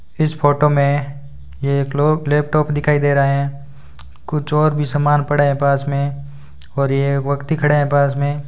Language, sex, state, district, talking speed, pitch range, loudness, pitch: Hindi, male, Rajasthan, Bikaner, 190 wpm, 140-145 Hz, -17 LUFS, 140 Hz